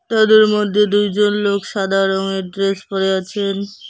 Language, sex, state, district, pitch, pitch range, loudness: Bengali, female, West Bengal, Cooch Behar, 200 Hz, 195-210 Hz, -16 LUFS